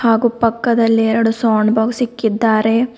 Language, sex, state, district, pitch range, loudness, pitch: Kannada, female, Karnataka, Bidar, 220-235 Hz, -15 LUFS, 225 Hz